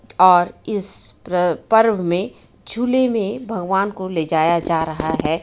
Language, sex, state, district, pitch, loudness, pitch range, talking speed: Hindi, female, Jharkhand, Ranchi, 185 Hz, -17 LUFS, 170-215 Hz, 145 wpm